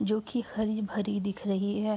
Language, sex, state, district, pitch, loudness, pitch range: Hindi, female, Uttar Pradesh, Jalaun, 210 Hz, -31 LUFS, 200-215 Hz